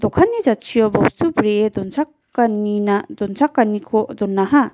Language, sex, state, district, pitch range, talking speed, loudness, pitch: Garo, female, Meghalaya, West Garo Hills, 210-295 Hz, 90 wpm, -18 LUFS, 225 Hz